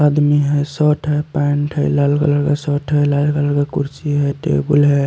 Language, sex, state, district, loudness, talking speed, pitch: Hindi, male, Chandigarh, Chandigarh, -16 LUFS, 225 wpm, 145 Hz